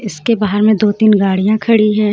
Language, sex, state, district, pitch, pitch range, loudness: Hindi, female, Jharkhand, Deoghar, 210 Hz, 210-215 Hz, -12 LUFS